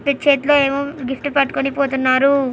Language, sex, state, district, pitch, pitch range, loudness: Telugu, male, Andhra Pradesh, Anantapur, 275 Hz, 265-280 Hz, -17 LUFS